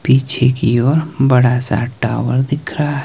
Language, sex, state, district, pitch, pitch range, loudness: Hindi, male, Himachal Pradesh, Shimla, 130 Hz, 125-140 Hz, -15 LUFS